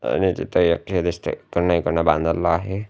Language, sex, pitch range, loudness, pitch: Marathi, male, 85-90 Hz, -21 LUFS, 85 Hz